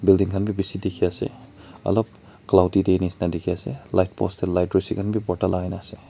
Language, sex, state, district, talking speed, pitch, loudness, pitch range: Nagamese, male, Nagaland, Kohima, 225 wpm, 95 Hz, -23 LUFS, 90-100 Hz